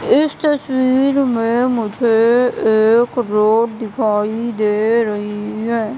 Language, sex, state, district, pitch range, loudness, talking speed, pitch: Hindi, female, Madhya Pradesh, Katni, 215-250 Hz, -16 LUFS, 100 wpm, 230 Hz